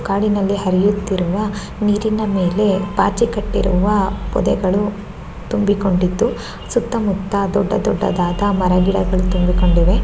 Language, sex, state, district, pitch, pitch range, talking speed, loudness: Kannada, female, Karnataka, Shimoga, 200 Hz, 185-205 Hz, 85 wpm, -17 LUFS